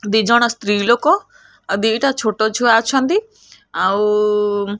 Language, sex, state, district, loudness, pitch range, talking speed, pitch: Odia, female, Odisha, Khordha, -16 LUFS, 210-270 Hz, 125 wpm, 220 Hz